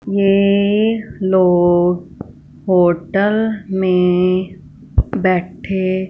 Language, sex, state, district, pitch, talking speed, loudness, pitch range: Hindi, female, Punjab, Fazilka, 190 Hz, 50 wpm, -16 LUFS, 180-200 Hz